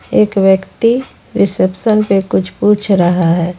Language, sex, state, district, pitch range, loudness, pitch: Hindi, female, Jharkhand, Ranchi, 185-210 Hz, -13 LUFS, 195 Hz